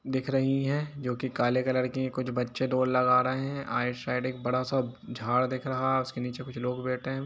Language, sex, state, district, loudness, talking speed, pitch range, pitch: Hindi, male, Jharkhand, Jamtara, -29 LUFS, 240 wpm, 125-130 Hz, 130 Hz